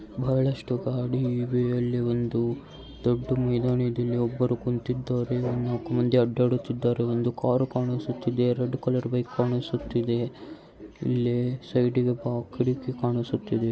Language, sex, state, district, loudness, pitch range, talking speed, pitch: Kannada, male, Karnataka, Dharwad, -27 LUFS, 120-125 Hz, 120 wpm, 125 Hz